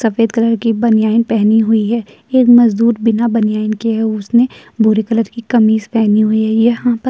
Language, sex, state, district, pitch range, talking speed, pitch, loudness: Hindi, female, Uttar Pradesh, Jyotiba Phule Nagar, 220-235 Hz, 200 wpm, 225 Hz, -13 LUFS